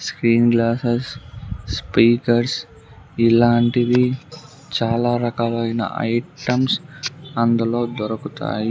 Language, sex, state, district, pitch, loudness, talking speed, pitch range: Telugu, male, Andhra Pradesh, Sri Satya Sai, 120 Hz, -19 LUFS, 60 wpm, 115-125 Hz